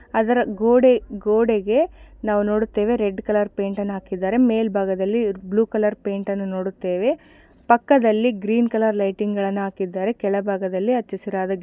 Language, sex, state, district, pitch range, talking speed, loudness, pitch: Kannada, female, Karnataka, Shimoga, 195-230 Hz, 125 wpm, -21 LUFS, 210 Hz